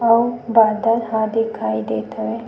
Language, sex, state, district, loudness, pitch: Chhattisgarhi, female, Chhattisgarh, Sukma, -19 LUFS, 225 Hz